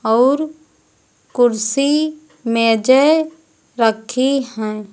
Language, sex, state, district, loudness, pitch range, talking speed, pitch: Hindi, female, Uttar Pradesh, Lucknow, -16 LUFS, 225-300 Hz, 60 wpm, 255 Hz